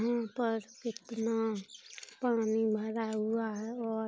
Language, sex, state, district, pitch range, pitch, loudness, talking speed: Bundeli, female, Uttar Pradesh, Jalaun, 220-230 Hz, 225 Hz, -34 LUFS, 130 wpm